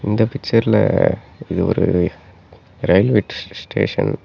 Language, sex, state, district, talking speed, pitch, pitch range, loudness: Tamil, male, Tamil Nadu, Namakkal, 100 wpm, 105 Hz, 90-110 Hz, -18 LUFS